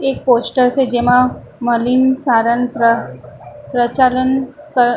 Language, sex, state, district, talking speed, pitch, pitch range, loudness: Gujarati, female, Maharashtra, Mumbai Suburban, 110 wpm, 250 Hz, 240-260 Hz, -15 LUFS